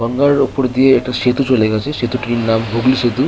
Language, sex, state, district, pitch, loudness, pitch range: Bengali, male, West Bengal, Kolkata, 125 Hz, -15 LUFS, 115-130 Hz